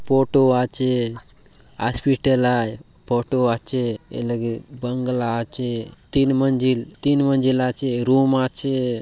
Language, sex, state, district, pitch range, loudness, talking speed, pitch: Halbi, male, Chhattisgarh, Bastar, 120-135 Hz, -21 LUFS, 115 wpm, 125 Hz